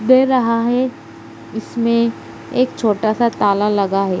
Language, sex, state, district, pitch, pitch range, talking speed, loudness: Hindi, female, Madhya Pradesh, Dhar, 230 Hz, 210-245 Hz, 140 wpm, -17 LUFS